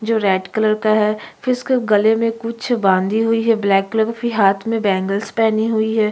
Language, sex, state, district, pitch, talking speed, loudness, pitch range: Hindi, female, Chhattisgarh, Kabirdham, 220 Hz, 215 wpm, -17 LUFS, 205-230 Hz